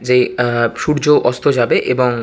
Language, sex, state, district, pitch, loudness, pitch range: Bengali, male, West Bengal, Kolkata, 125 Hz, -15 LUFS, 120-135 Hz